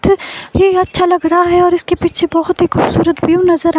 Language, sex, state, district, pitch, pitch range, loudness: Hindi, female, Himachal Pradesh, Shimla, 350 Hz, 335-360 Hz, -12 LUFS